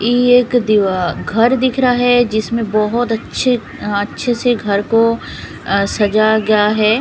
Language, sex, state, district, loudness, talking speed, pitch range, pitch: Hindi, female, Punjab, Fazilka, -14 LUFS, 155 wpm, 210-245 Hz, 225 Hz